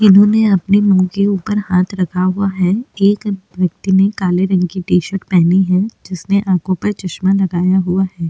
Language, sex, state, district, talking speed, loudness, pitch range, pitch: Hindi, female, Chhattisgarh, Bastar, 190 wpm, -15 LUFS, 185-200 Hz, 190 Hz